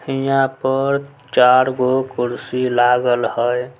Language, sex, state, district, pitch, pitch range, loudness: Maithili, male, Bihar, Samastipur, 130 Hz, 125-135 Hz, -17 LUFS